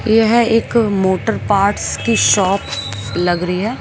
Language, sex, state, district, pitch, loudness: Hindi, female, Delhi, New Delhi, 190 Hz, -15 LUFS